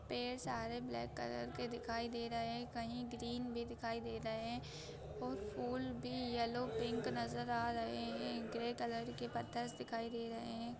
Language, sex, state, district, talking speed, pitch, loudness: Hindi, female, Bihar, East Champaran, 190 wpm, 230 Hz, -43 LUFS